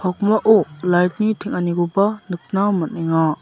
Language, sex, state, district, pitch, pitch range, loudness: Garo, male, Meghalaya, South Garo Hills, 180 Hz, 175-205 Hz, -18 LUFS